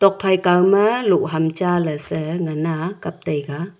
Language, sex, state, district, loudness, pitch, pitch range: Wancho, female, Arunachal Pradesh, Longding, -19 LUFS, 175 Hz, 160-190 Hz